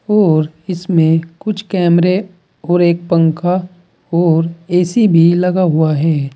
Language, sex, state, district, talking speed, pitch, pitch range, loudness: Hindi, male, Uttar Pradesh, Saharanpur, 125 wpm, 175 Hz, 165-180 Hz, -14 LUFS